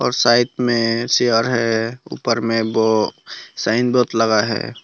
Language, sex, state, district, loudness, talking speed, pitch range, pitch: Hindi, male, Tripura, Dhalai, -18 LUFS, 150 wpm, 115-120 Hz, 115 Hz